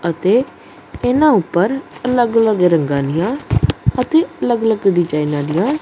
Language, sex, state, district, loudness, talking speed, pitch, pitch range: Punjabi, male, Punjab, Kapurthala, -16 LUFS, 125 wpm, 215 Hz, 170-250 Hz